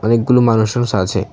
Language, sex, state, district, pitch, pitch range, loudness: Bengali, male, Tripura, West Tripura, 115 Hz, 110-120 Hz, -14 LUFS